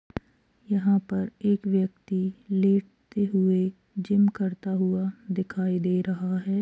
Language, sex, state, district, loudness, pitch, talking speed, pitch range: Hindi, female, Bihar, Purnia, -26 LUFS, 195 Hz, 120 wpm, 185-200 Hz